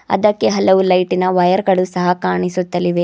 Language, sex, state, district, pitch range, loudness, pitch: Kannada, female, Karnataka, Bidar, 180-190 Hz, -15 LUFS, 185 Hz